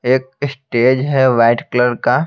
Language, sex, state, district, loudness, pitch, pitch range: Hindi, male, Bihar, Patna, -15 LUFS, 130 Hz, 125-135 Hz